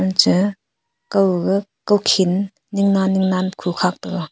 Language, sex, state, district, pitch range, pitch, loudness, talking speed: Wancho, female, Arunachal Pradesh, Longding, 185-200 Hz, 190 Hz, -18 LUFS, 155 wpm